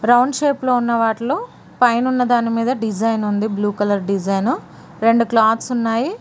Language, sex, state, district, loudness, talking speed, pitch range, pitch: Telugu, female, Telangana, Mahabubabad, -18 LUFS, 145 wpm, 220-250 Hz, 230 Hz